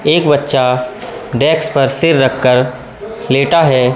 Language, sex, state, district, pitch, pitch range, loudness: Hindi, male, Madhya Pradesh, Katni, 135 Hz, 125-160 Hz, -12 LUFS